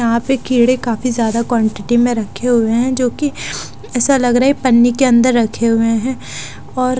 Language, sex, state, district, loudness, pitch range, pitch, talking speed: Hindi, female, Punjab, Fazilka, -14 LUFS, 230-255 Hz, 245 Hz, 205 wpm